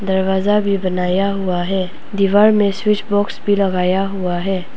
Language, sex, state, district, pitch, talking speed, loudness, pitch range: Hindi, female, Arunachal Pradesh, Papum Pare, 195 Hz, 165 wpm, -17 LUFS, 185-205 Hz